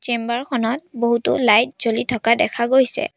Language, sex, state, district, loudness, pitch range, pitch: Assamese, female, Assam, Sonitpur, -19 LUFS, 235-260 Hz, 240 Hz